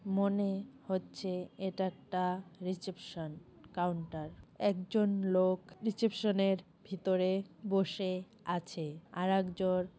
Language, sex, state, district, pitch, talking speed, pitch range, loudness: Bengali, female, West Bengal, North 24 Parganas, 185 Hz, 90 wpm, 180-195 Hz, -35 LUFS